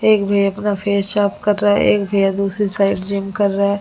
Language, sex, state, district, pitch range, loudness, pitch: Hindi, female, Delhi, New Delhi, 200-205 Hz, -17 LUFS, 200 Hz